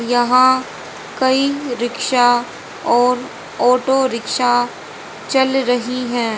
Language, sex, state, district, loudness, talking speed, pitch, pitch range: Hindi, female, Haryana, Jhajjar, -16 LUFS, 85 wpm, 250 Hz, 245-260 Hz